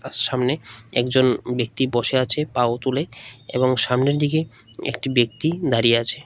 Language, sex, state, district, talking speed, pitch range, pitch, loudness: Bengali, male, Tripura, West Tripura, 135 wpm, 120-140 Hz, 125 Hz, -21 LUFS